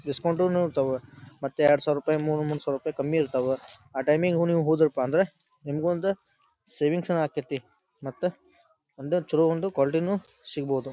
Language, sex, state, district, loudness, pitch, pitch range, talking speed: Kannada, male, Karnataka, Dharwad, -26 LUFS, 155 Hz, 140-175 Hz, 125 wpm